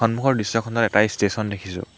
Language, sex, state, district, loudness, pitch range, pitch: Assamese, male, Assam, Hailakandi, -21 LUFS, 100-115 Hz, 110 Hz